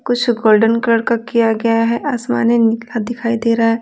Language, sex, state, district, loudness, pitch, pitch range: Hindi, female, Bihar, Patna, -15 LUFS, 230 Hz, 225-235 Hz